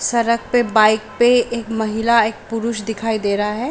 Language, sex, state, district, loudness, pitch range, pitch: Hindi, female, Jharkhand, Sahebganj, -17 LUFS, 215-235 Hz, 225 Hz